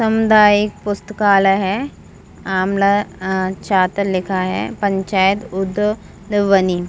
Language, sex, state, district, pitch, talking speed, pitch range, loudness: Hindi, female, Jharkhand, Jamtara, 195 Hz, 70 wpm, 190-205 Hz, -17 LUFS